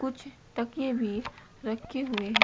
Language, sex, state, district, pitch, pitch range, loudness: Hindi, male, Uttar Pradesh, Shamli, 235 Hz, 220-265 Hz, -33 LUFS